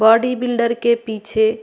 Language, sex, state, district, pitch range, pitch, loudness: Surgujia, female, Chhattisgarh, Sarguja, 220-235 Hz, 235 Hz, -18 LUFS